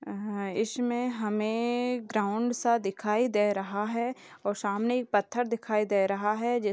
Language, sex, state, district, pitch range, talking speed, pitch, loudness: Hindi, female, Uttar Pradesh, Hamirpur, 205-240 Hz, 180 wpm, 215 Hz, -29 LUFS